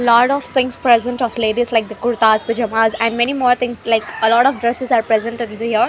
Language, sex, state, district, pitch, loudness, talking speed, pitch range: English, female, Haryana, Rohtak, 235 Hz, -16 LUFS, 235 wpm, 225-245 Hz